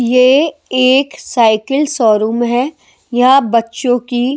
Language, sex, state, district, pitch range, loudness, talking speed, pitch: Hindi, male, Delhi, New Delhi, 235-275 Hz, -13 LUFS, 110 wpm, 250 Hz